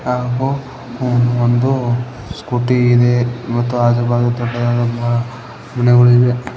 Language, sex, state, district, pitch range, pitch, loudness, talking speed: Kannada, male, Karnataka, Koppal, 120-125 Hz, 120 Hz, -15 LUFS, 90 wpm